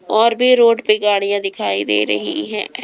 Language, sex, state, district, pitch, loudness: Hindi, female, Rajasthan, Jaipur, 205 Hz, -16 LUFS